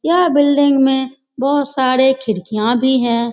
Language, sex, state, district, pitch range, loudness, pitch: Hindi, female, Bihar, Lakhisarai, 240-280 Hz, -15 LUFS, 265 Hz